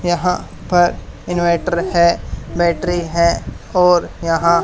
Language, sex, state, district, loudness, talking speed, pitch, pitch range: Hindi, male, Haryana, Charkhi Dadri, -17 LUFS, 105 wpm, 175 Hz, 170-175 Hz